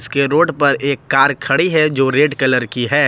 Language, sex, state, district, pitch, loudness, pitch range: Hindi, male, Jharkhand, Ranchi, 140 Hz, -15 LUFS, 130-150 Hz